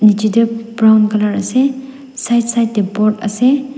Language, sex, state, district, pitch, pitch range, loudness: Nagamese, female, Nagaland, Dimapur, 225 Hz, 215-260 Hz, -14 LUFS